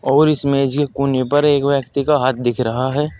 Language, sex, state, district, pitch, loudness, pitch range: Hindi, male, Uttar Pradesh, Saharanpur, 140 Hz, -17 LUFS, 130-145 Hz